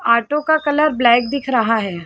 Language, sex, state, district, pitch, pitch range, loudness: Hindi, female, Chhattisgarh, Sarguja, 245 Hz, 235-295 Hz, -16 LUFS